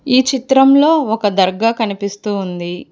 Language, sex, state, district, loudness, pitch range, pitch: Telugu, female, Telangana, Hyderabad, -14 LUFS, 200-265 Hz, 225 Hz